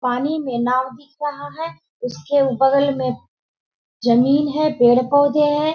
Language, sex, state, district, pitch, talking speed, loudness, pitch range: Hindi, female, Bihar, Bhagalpur, 280 Hz, 155 wpm, -18 LUFS, 250-295 Hz